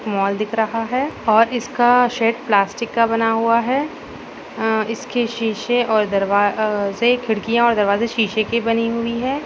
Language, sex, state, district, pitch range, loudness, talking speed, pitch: Hindi, female, Uttar Pradesh, Gorakhpur, 215-240 Hz, -18 LUFS, 160 wpm, 230 Hz